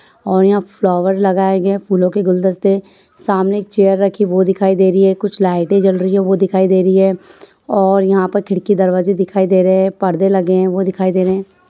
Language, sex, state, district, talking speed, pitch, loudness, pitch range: Hindi, female, Bihar, Bhagalpur, 230 wpm, 190 Hz, -14 LUFS, 185-195 Hz